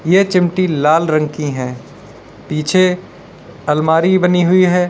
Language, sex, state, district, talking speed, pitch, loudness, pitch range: Hindi, male, Uttar Pradesh, Lalitpur, 135 wpm, 165 Hz, -14 LUFS, 150-180 Hz